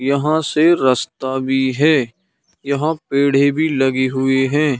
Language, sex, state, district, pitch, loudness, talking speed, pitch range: Hindi, male, Madhya Pradesh, Katni, 140 Hz, -16 LUFS, 140 wpm, 130-150 Hz